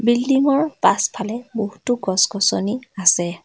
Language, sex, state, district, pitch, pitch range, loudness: Assamese, female, Assam, Sonitpur, 220 Hz, 195-245 Hz, -19 LUFS